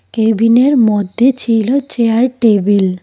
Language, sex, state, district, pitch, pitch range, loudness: Bengali, female, Tripura, Dhalai, 230 Hz, 215-245 Hz, -12 LUFS